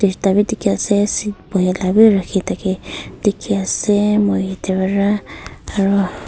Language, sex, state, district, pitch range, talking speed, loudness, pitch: Nagamese, female, Nagaland, Kohima, 190-205 Hz, 135 wpm, -17 LUFS, 200 Hz